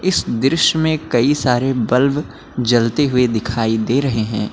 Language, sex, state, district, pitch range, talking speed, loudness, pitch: Hindi, male, Uttar Pradesh, Lucknow, 115-145 Hz, 160 wpm, -17 LUFS, 125 Hz